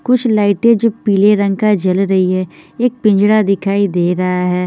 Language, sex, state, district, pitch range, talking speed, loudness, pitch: Hindi, female, Bihar, Patna, 185-215 Hz, 195 wpm, -13 LUFS, 200 Hz